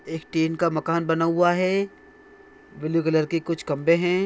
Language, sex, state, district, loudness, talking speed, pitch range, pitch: Hindi, male, Andhra Pradesh, Anantapur, -23 LUFS, 185 wpm, 160-175 Hz, 165 Hz